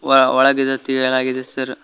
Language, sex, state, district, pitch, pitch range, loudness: Kannada, male, Karnataka, Koppal, 130 Hz, 130-135 Hz, -16 LUFS